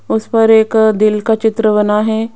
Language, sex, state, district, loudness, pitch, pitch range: Hindi, female, Rajasthan, Jaipur, -12 LUFS, 220 Hz, 215-225 Hz